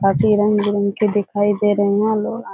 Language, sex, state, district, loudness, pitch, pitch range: Hindi, female, Bihar, Jahanabad, -17 LUFS, 205 Hz, 205-210 Hz